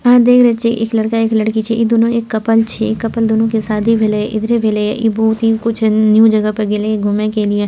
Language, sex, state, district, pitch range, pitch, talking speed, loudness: Maithili, female, Bihar, Purnia, 215-225 Hz, 220 Hz, 250 wpm, -14 LUFS